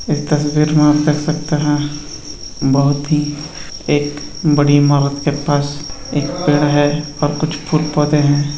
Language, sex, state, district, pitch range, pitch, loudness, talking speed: Hindi, male, Uttar Pradesh, Deoria, 145-150 Hz, 150 Hz, -16 LUFS, 145 wpm